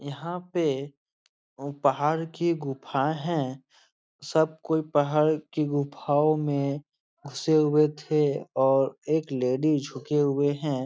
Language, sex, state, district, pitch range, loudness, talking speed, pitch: Hindi, male, Uttar Pradesh, Etah, 140-155 Hz, -26 LUFS, 120 wpm, 145 Hz